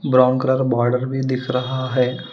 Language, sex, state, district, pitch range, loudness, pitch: Hindi, female, Telangana, Hyderabad, 125-130 Hz, -19 LUFS, 130 Hz